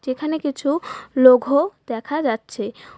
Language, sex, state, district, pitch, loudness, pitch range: Bengali, female, West Bengal, Alipurduar, 280 Hz, -19 LUFS, 255-300 Hz